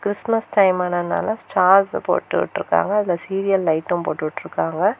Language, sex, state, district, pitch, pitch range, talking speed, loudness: Tamil, female, Tamil Nadu, Kanyakumari, 195 Hz, 175-205 Hz, 120 wpm, -20 LUFS